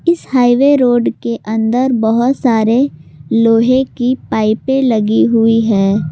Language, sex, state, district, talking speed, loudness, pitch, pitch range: Hindi, female, Jharkhand, Palamu, 125 wpm, -13 LUFS, 235 Hz, 220-255 Hz